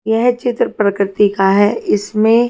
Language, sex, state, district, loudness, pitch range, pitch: Hindi, female, Haryana, Jhajjar, -14 LUFS, 200-230 Hz, 215 Hz